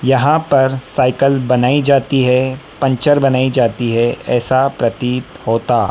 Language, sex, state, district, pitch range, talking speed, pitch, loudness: Hindi, female, Madhya Pradesh, Dhar, 120-135 Hz, 130 wpm, 130 Hz, -14 LUFS